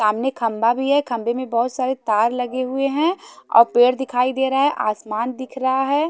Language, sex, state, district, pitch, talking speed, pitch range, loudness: Hindi, female, Haryana, Charkhi Dadri, 255 Hz, 215 wpm, 235-265 Hz, -20 LUFS